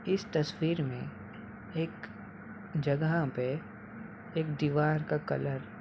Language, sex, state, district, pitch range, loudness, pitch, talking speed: Hindi, male, Bihar, Samastipur, 150-170 Hz, -33 LUFS, 155 Hz, 115 wpm